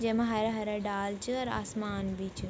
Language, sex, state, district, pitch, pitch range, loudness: Garhwali, female, Uttarakhand, Tehri Garhwal, 210 Hz, 200-225 Hz, -33 LUFS